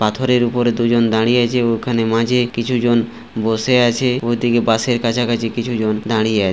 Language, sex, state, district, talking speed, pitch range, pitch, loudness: Bengali, male, West Bengal, Purulia, 175 wpm, 115-120 Hz, 120 Hz, -17 LUFS